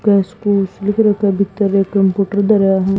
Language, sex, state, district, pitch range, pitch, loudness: Hindi, female, Haryana, Jhajjar, 195-205 Hz, 200 Hz, -15 LUFS